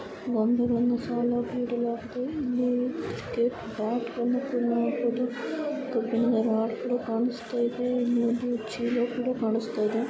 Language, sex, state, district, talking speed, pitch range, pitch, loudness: Kannada, female, Karnataka, Dharwad, 115 wpm, 235-245 Hz, 240 Hz, -28 LUFS